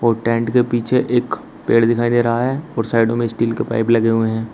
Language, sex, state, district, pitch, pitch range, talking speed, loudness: Hindi, male, Uttar Pradesh, Shamli, 115 Hz, 115-120 Hz, 250 wpm, -17 LUFS